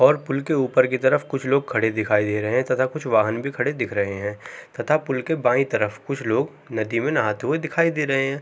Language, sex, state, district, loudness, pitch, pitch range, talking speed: Hindi, male, Uttar Pradesh, Jalaun, -22 LUFS, 130 Hz, 110-140 Hz, 250 wpm